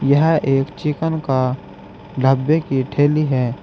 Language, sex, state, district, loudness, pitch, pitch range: Hindi, male, Uttar Pradesh, Saharanpur, -18 LUFS, 140 Hz, 130-150 Hz